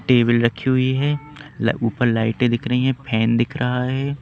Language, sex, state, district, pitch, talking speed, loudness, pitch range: Hindi, male, Madhya Pradesh, Katni, 125 Hz, 185 wpm, -20 LUFS, 120-135 Hz